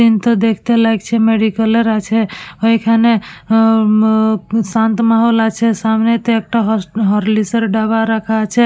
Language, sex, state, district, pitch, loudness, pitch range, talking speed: Bengali, female, West Bengal, Purulia, 225 Hz, -14 LUFS, 220-230 Hz, 145 wpm